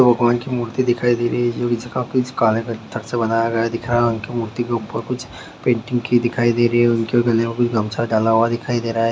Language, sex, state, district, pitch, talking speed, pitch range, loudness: Hindi, male, Bihar, Sitamarhi, 120 Hz, 265 wpm, 115-120 Hz, -19 LUFS